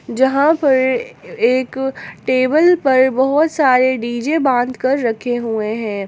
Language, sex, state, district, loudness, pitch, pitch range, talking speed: Hindi, female, Jharkhand, Garhwa, -16 LUFS, 260 Hz, 245-280 Hz, 130 wpm